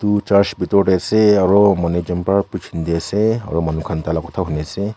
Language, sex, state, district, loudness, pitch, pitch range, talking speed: Nagamese, female, Nagaland, Kohima, -17 LUFS, 95 Hz, 85-100 Hz, 205 wpm